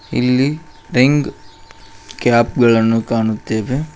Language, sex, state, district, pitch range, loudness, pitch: Kannada, male, Karnataka, Koppal, 115-145 Hz, -15 LUFS, 125 Hz